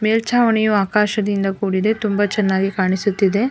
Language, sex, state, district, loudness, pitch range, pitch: Kannada, female, Karnataka, Mysore, -18 LUFS, 195-215 Hz, 205 Hz